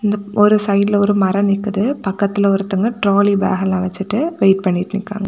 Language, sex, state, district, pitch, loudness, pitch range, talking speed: Tamil, female, Tamil Nadu, Kanyakumari, 200 Hz, -16 LUFS, 195-205 Hz, 160 wpm